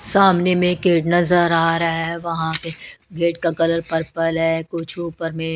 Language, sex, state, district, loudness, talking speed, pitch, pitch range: Hindi, female, Odisha, Nuapada, -19 LUFS, 185 wpm, 165 Hz, 165-175 Hz